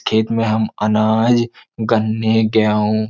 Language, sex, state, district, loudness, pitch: Hindi, male, Uttar Pradesh, Jyotiba Phule Nagar, -17 LUFS, 110 Hz